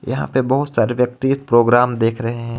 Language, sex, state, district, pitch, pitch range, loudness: Hindi, male, Jharkhand, Ranchi, 125 Hz, 115-130 Hz, -17 LUFS